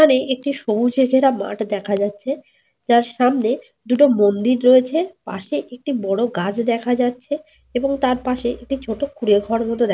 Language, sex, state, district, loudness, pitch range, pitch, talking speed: Bengali, female, Jharkhand, Sahebganj, -19 LUFS, 230-270 Hz, 245 Hz, 165 wpm